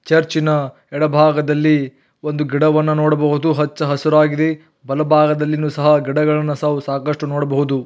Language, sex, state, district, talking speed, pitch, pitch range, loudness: Kannada, male, Karnataka, Belgaum, 100 wpm, 150 Hz, 145-155 Hz, -16 LUFS